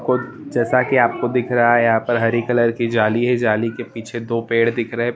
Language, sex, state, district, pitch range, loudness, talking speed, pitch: Hindi, male, Chhattisgarh, Rajnandgaon, 115-120 Hz, -18 LUFS, 235 wpm, 120 Hz